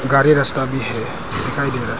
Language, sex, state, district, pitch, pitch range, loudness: Hindi, male, Arunachal Pradesh, Papum Pare, 135 Hz, 120-140 Hz, -17 LUFS